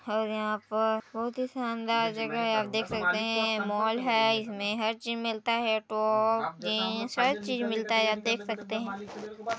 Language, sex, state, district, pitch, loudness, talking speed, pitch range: Hindi, female, Chhattisgarh, Balrampur, 220 Hz, -29 LUFS, 180 wpm, 215-230 Hz